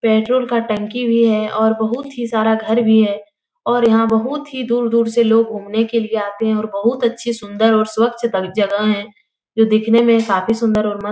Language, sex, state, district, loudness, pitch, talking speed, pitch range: Hindi, female, Uttar Pradesh, Etah, -16 LUFS, 225 Hz, 220 wpm, 215-235 Hz